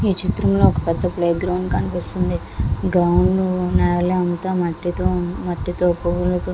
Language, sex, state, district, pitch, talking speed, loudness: Telugu, female, Andhra Pradesh, Visakhapatnam, 160 Hz, 120 wpm, -20 LUFS